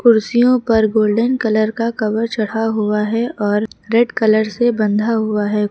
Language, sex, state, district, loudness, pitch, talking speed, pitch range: Hindi, female, Uttar Pradesh, Lucknow, -16 LUFS, 220 Hz, 170 wpm, 215-230 Hz